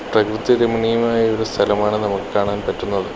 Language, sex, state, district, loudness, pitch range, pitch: Malayalam, male, Kerala, Kollam, -18 LUFS, 105-115 Hz, 110 Hz